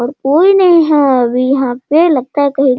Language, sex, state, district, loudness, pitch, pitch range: Hindi, female, Bihar, Sitamarhi, -11 LUFS, 275 Hz, 255-315 Hz